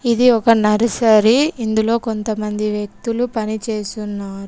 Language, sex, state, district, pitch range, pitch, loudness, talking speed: Telugu, female, Telangana, Komaram Bheem, 210-230 Hz, 220 Hz, -17 LUFS, 105 wpm